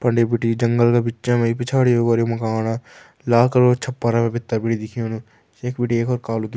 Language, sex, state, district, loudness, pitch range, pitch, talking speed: Garhwali, male, Uttarakhand, Tehri Garhwal, -19 LUFS, 115-120 Hz, 120 Hz, 185 wpm